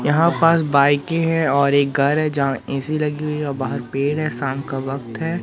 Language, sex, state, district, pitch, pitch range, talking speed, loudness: Hindi, male, Madhya Pradesh, Katni, 145 Hz, 140-155 Hz, 230 wpm, -19 LUFS